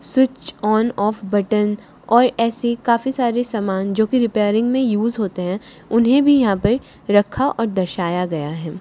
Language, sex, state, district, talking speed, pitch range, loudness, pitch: Hindi, female, Haryana, Charkhi Dadri, 165 wpm, 200-245 Hz, -18 LUFS, 220 Hz